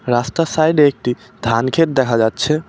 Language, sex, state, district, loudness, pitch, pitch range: Bengali, male, West Bengal, Cooch Behar, -16 LUFS, 130 Hz, 120-155 Hz